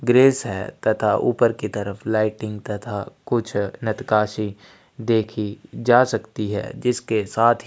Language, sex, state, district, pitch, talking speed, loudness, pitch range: Hindi, male, Chhattisgarh, Sukma, 110 Hz, 140 wpm, -22 LUFS, 105-120 Hz